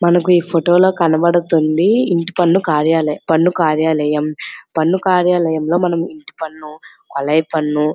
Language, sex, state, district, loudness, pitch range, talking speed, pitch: Telugu, female, Andhra Pradesh, Srikakulam, -15 LUFS, 155-175 Hz, 135 wpm, 165 Hz